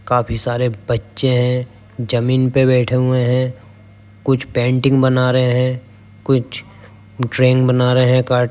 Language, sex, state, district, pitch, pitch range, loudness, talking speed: Hindi, male, Uttar Pradesh, Jyotiba Phule Nagar, 125 Hz, 115-130 Hz, -16 LUFS, 140 wpm